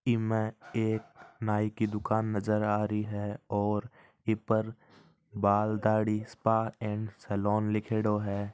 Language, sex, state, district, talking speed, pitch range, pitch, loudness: Marwari, male, Rajasthan, Nagaur, 140 wpm, 105-110 Hz, 105 Hz, -31 LUFS